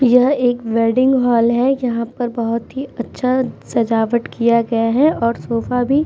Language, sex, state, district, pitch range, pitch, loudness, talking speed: Hindi, female, Uttar Pradesh, Muzaffarnagar, 230-255 Hz, 240 Hz, -17 LUFS, 180 wpm